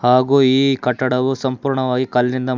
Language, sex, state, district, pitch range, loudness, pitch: Kannada, male, Karnataka, Bangalore, 125-130 Hz, -17 LUFS, 130 Hz